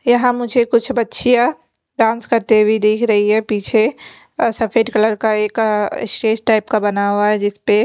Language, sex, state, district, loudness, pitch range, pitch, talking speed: Hindi, female, Chhattisgarh, Raipur, -16 LUFS, 215-235 Hz, 220 Hz, 205 wpm